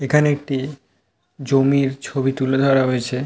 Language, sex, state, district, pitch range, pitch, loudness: Bengali, male, West Bengal, North 24 Parganas, 130-140 Hz, 135 Hz, -19 LUFS